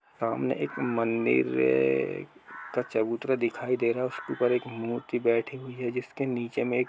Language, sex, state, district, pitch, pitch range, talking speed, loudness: Hindi, male, Uttar Pradesh, Jalaun, 120 Hz, 115-125 Hz, 185 wpm, -28 LUFS